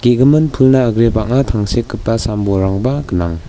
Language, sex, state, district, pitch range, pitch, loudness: Garo, male, Meghalaya, West Garo Hills, 105-130 Hz, 115 Hz, -14 LUFS